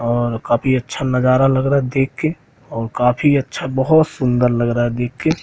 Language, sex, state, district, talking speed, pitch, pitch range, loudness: Hindi, male, Madhya Pradesh, Katni, 185 wpm, 130 Hz, 120-140 Hz, -17 LUFS